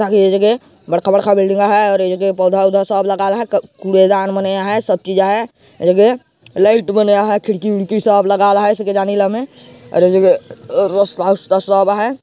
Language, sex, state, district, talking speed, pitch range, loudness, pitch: Hindi, male, Chhattisgarh, Jashpur, 205 wpm, 195-210 Hz, -14 LUFS, 200 Hz